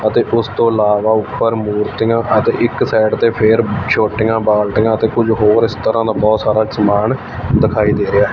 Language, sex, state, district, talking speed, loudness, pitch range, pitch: Punjabi, male, Punjab, Fazilka, 195 wpm, -14 LUFS, 105-115 Hz, 110 Hz